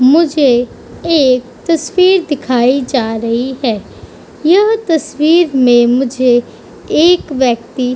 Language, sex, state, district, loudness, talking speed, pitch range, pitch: Hindi, female, Uttar Pradesh, Budaun, -12 LUFS, 115 wpm, 245-325 Hz, 265 Hz